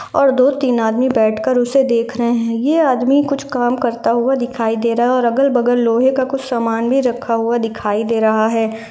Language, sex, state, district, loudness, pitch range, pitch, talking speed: Hindi, female, Bihar, Lakhisarai, -16 LUFS, 230-260 Hz, 240 Hz, 220 wpm